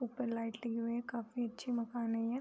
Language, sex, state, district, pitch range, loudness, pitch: Hindi, female, Uttar Pradesh, Hamirpur, 230-240 Hz, -39 LUFS, 235 Hz